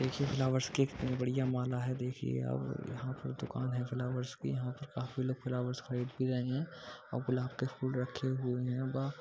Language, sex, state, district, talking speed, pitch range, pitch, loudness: Hindi, male, Uttar Pradesh, Budaun, 210 wpm, 125-130 Hz, 125 Hz, -36 LUFS